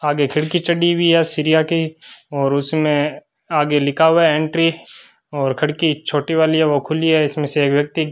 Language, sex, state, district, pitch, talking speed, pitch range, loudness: Hindi, male, Rajasthan, Bikaner, 155 Hz, 200 wpm, 145-160 Hz, -17 LUFS